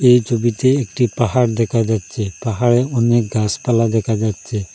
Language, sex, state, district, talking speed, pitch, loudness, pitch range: Bengali, male, Assam, Hailakandi, 140 wpm, 115 Hz, -17 LUFS, 110-120 Hz